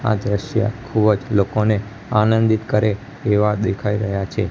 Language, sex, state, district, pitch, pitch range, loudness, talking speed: Gujarati, male, Gujarat, Gandhinagar, 105 Hz, 105-110 Hz, -19 LUFS, 135 wpm